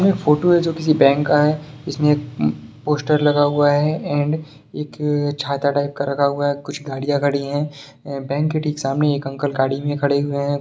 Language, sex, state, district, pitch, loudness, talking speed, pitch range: Hindi, male, Bihar, Sitamarhi, 145 Hz, -19 LUFS, 220 wpm, 140-150 Hz